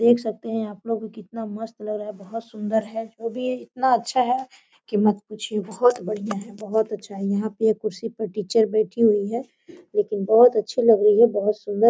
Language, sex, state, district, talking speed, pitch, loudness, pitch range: Hindi, female, Jharkhand, Sahebganj, 210 wpm, 220 Hz, -22 LUFS, 210-235 Hz